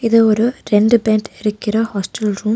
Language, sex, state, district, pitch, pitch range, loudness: Tamil, female, Tamil Nadu, Nilgiris, 215 Hz, 210-230 Hz, -16 LUFS